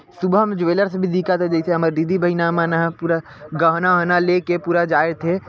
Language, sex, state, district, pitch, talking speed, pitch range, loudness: Chhattisgarhi, male, Chhattisgarh, Bilaspur, 175 Hz, 210 wpm, 165-180 Hz, -18 LUFS